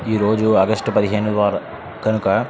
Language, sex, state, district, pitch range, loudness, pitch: Telugu, male, Andhra Pradesh, Srikakulam, 105-110 Hz, -18 LUFS, 110 Hz